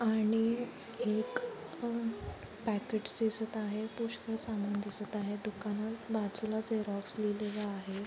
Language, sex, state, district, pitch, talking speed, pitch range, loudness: Marathi, female, Maharashtra, Dhule, 220 Hz, 110 wpm, 210-225 Hz, -35 LUFS